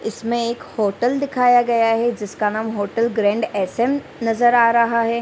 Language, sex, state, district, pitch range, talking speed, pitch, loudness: Hindi, female, Bihar, Darbhanga, 220-240 Hz, 170 wpm, 230 Hz, -19 LUFS